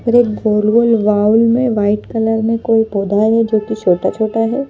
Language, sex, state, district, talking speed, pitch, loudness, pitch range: Hindi, female, Madhya Pradesh, Bhopal, 190 wpm, 220 Hz, -14 LUFS, 210-230 Hz